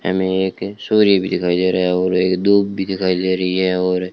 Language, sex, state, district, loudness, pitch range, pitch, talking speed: Hindi, male, Rajasthan, Bikaner, -17 LUFS, 90-95 Hz, 95 Hz, 245 wpm